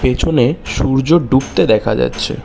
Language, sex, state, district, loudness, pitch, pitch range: Bengali, male, West Bengal, Cooch Behar, -14 LUFS, 130 Hz, 80-135 Hz